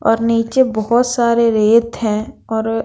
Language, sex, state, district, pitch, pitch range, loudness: Hindi, female, Bihar, Patna, 230 Hz, 225-235 Hz, -15 LUFS